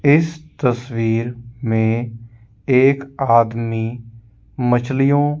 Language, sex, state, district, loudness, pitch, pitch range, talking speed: Hindi, male, Chandigarh, Chandigarh, -18 LUFS, 120 Hz, 115-135 Hz, 65 wpm